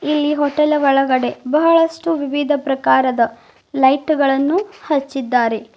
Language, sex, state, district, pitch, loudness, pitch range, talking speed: Kannada, female, Karnataka, Bidar, 285 Hz, -16 LUFS, 260-300 Hz, 95 wpm